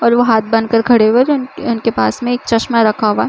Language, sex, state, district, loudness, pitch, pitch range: Hindi, female, Uttar Pradesh, Budaun, -13 LUFS, 230 Hz, 225-245 Hz